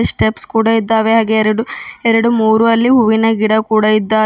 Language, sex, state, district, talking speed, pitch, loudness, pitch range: Kannada, female, Karnataka, Bidar, 170 wpm, 220 Hz, -13 LUFS, 220-225 Hz